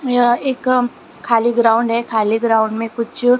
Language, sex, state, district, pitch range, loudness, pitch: Hindi, female, Maharashtra, Gondia, 225-245 Hz, -16 LUFS, 235 Hz